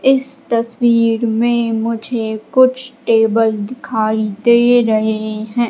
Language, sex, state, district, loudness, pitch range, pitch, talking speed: Hindi, female, Madhya Pradesh, Katni, -15 LUFS, 220-240 Hz, 230 Hz, 105 wpm